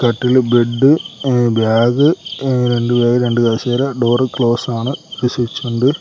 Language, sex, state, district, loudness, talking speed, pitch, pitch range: Malayalam, male, Kerala, Kollam, -15 LUFS, 150 wpm, 120 Hz, 120-130 Hz